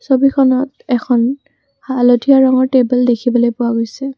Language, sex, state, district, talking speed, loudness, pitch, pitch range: Assamese, female, Assam, Kamrup Metropolitan, 115 wpm, -13 LUFS, 255 Hz, 245-270 Hz